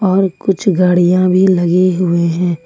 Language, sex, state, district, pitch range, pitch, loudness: Hindi, female, Jharkhand, Ranchi, 175-190 Hz, 180 Hz, -12 LUFS